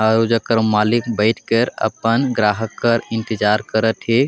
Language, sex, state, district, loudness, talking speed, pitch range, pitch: Sadri, male, Chhattisgarh, Jashpur, -18 LUFS, 155 wpm, 110-115 Hz, 115 Hz